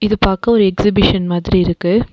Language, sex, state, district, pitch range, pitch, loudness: Tamil, female, Tamil Nadu, Nilgiris, 180-215 Hz, 195 Hz, -14 LUFS